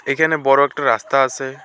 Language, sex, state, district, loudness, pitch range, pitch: Bengali, male, West Bengal, Alipurduar, -16 LUFS, 135-145 Hz, 135 Hz